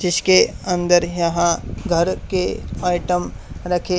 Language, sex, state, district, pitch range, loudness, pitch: Hindi, male, Haryana, Charkhi Dadri, 170-180 Hz, -19 LUFS, 175 Hz